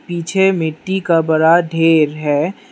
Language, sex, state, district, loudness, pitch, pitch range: Hindi, male, Manipur, Imphal West, -15 LUFS, 165 Hz, 160-185 Hz